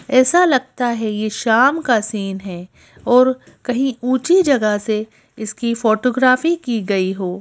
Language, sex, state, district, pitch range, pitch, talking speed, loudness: Hindi, female, Madhya Pradesh, Bhopal, 215-260 Hz, 235 Hz, 145 wpm, -17 LUFS